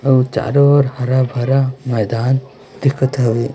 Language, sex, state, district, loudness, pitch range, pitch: Hindi, female, Chhattisgarh, Raipur, -16 LUFS, 125-135 Hz, 130 Hz